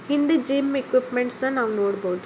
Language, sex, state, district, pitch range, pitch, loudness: Kannada, female, Karnataka, Bellary, 235-275 Hz, 255 Hz, -23 LUFS